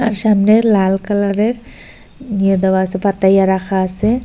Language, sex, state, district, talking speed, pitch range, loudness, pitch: Bengali, female, Assam, Hailakandi, 140 wpm, 190-215 Hz, -14 LUFS, 200 Hz